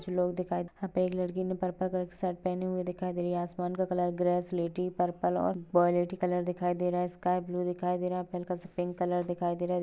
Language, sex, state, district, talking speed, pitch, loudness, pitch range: Hindi, female, Goa, North and South Goa, 260 wpm, 180 Hz, -32 LUFS, 175-180 Hz